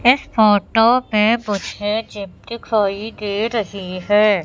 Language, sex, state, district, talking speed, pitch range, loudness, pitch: Hindi, female, Madhya Pradesh, Katni, 120 wpm, 205-225 Hz, -18 LUFS, 210 Hz